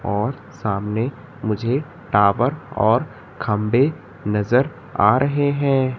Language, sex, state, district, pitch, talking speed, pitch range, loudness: Hindi, male, Madhya Pradesh, Katni, 120 Hz, 100 wpm, 105-140 Hz, -20 LUFS